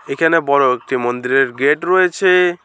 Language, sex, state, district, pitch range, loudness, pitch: Bengali, male, West Bengal, Alipurduar, 135-180 Hz, -15 LUFS, 155 Hz